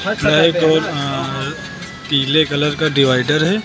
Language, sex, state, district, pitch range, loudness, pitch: Hindi, male, Uttar Pradesh, Lucknow, 145-170 Hz, -16 LUFS, 155 Hz